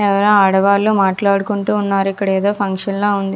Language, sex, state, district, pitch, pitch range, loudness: Telugu, female, Andhra Pradesh, Visakhapatnam, 200 Hz, 195-205 Hz, -15 LUFS